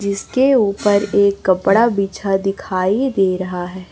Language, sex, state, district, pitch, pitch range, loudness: Hindi, female, Chhattisgarh, Raipur, 200 Hz, 185-205 Hz, -16 LUFS